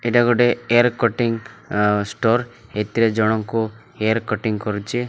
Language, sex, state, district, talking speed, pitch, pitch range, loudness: Odia, male, Odisha, Malkangiri, 120 wpm, 115 Hz, 110-120 Hz, -20 LUFS